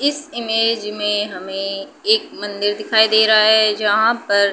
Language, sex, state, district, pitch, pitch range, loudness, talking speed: Hindi, female, Uttar Pradesh, Budaun, 215 Hz, 205-230 Hz, -16 LUFS, 170 wpm